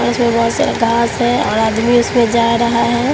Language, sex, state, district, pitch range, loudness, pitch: Hindi, female, Bihar, Katihar, 230-240 Hz, -14 LUFS, 235 Hz